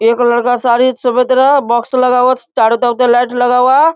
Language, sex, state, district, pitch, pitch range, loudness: Hindi, male, Bihar, Darbhanga, 245 Hz, 240-255 Hz, -11 LUFS